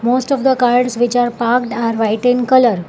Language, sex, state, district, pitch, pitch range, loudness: English, female, Telangana, Hyderabad, 245 Hz, 235-250 Hz, -15 LUFS